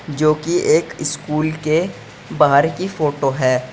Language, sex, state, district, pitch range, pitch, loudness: Hindi, male, Uttar Pradesh, Saharanpur, 140-165 Hz, 155 Hz, -18 LUFS